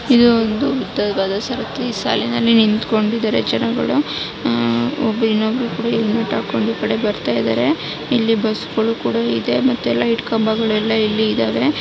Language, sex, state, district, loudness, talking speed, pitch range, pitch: Kannada, female, Karnataka, Dharwad, -18 LUFS, 125 wpm, 215-230 Hz, 220 Hz